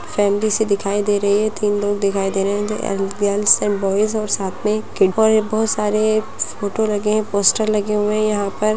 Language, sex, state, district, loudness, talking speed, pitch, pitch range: Hindi, female, Bihar, Muzaffarpur, -18 LUFS, 220 wpm, 210 Hz, 200-215 Hz